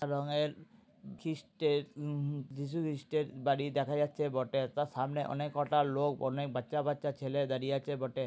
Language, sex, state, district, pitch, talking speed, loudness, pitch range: Bengali, male, West Bengal, Jhargram, 145 Hz, 145 wpm, -35 LUFS, 140-150 Hz